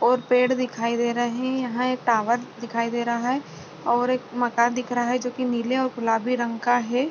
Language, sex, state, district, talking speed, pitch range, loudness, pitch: Hindi, female, Uttarakhand, Tehri Garhwal, 220 wpm, 235-250 Hz, -24 LUFS, 245 Hz